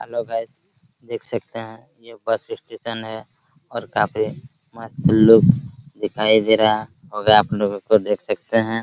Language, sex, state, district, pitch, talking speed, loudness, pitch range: Hindi, male, Bihar, Araria, 115 Hz, 165 wpm, -19 LUFS, 110-130 Hz